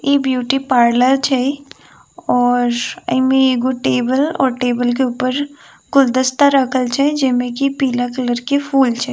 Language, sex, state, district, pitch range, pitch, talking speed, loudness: Maithili, female, Bihar, Sitamarhi, 245-275 Hz, 260 Hz, 145 wpm, -16 LUFS